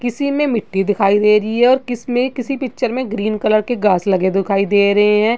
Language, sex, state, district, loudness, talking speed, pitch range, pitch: Hindi, female, Uttar Pradesh, Gorakhpur, -16 LUFS, 235 wpm, 205-250 Hz, 215 Hz